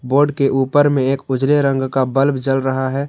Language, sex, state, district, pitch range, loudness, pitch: Hindi, male, Jharkhand, Garhwa, 130-140 Hz, -16 LUFS, 135 Hz